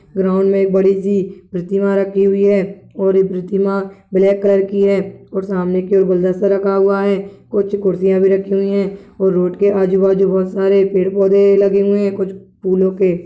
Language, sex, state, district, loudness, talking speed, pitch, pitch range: Hindi, male, Chhattisgarh, Balrampur, -15 LUFS, 200 wpm, 195 Hz, 190-195 Hz